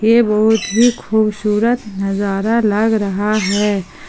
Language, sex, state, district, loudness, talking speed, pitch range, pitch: Hindi, female, Jharkhand, Palamu, -15 LUFS, 115 wpm, 200-225 Hz, 215 Hz